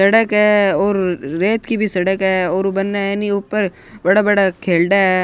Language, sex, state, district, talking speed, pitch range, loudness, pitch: Rajasthani, male, Rajasthan, Nagaur, 195 wpm, 185-205 Hz, -16 LUFS, 195 Hz